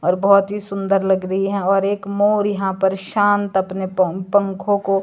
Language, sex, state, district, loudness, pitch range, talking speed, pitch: Hindi, female, Himachal Pradesh, Shimla, -18 LUFS, 190-200 Hz, 200 wpm, 195 Hz